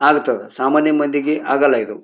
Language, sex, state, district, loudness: Kannada, male, Karnataka, Bijapur, -17 LUFS